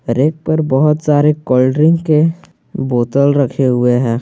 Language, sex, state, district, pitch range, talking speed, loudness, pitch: Hindi, male, Jharkhand, Garhwa, 125-155 Hz, 155 wpm, -13 LUFS, 140 Hz